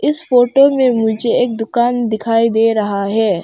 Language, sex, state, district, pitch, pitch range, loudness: Hindi, female, Arunachal Pradesh, Longding, 230 Hz, 220-245 Hz, -14 LUFS